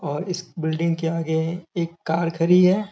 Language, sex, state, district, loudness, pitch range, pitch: Hindi, male, Uttar Pradesh, Gorakhpur, -22 LUFS, 160-180 Hz, 165 Hz